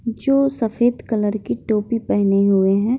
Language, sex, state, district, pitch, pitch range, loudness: Hindi, female, Bihar, Begusarai, 220 Hz, 205-240 Hz, -19 LUFS